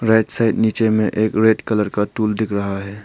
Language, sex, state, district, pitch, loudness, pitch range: Hindi, male, Arunachal Pradesh, Papum Pare, 110 Hz, -18 LUFS, 105-110 Hz